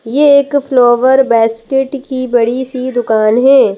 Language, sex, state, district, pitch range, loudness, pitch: Hindi, female, Madhya Pradesh, Bhopal, 235-270 Hz, -11 LUFS, 255 Hz